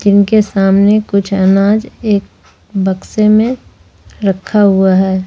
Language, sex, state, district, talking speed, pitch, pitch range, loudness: Hindi, female, Jharkhand, Ranchi, 125 wpm, 200 Hz, 195-210 Hz, -12 LUFS